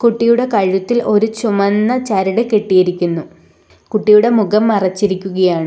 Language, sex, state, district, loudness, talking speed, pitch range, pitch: Malayalam, female, Kerala, Kollam, -14 LUFS, 95 wpm, 190-225 Hz, 210 Hz